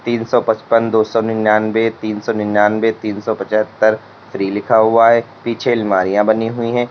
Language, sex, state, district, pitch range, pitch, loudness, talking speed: Hindi, male, Uttar Pradesh, Lalitpur, 105-115 Hz, 110 Hz, -15 LUFS, 180 wpm